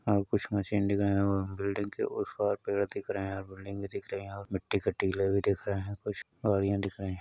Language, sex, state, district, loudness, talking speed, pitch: Hindi, male, Uttar Pradesh, Varanasi, -32 LUFS, 285 wpm, 100 Hz